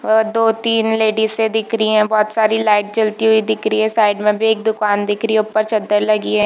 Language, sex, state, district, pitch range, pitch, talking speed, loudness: Hindi, female, Jharkhand, Jamtara, 210-220 Hz, 220 Hz, 230 wpm, -16 LUFS